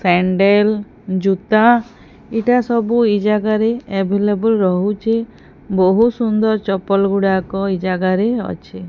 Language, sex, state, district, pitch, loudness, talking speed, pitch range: Odia, female, Odisha, Sambalpur, 205 Hz, -16 LUFS, 100 wpm, 190-225 Hz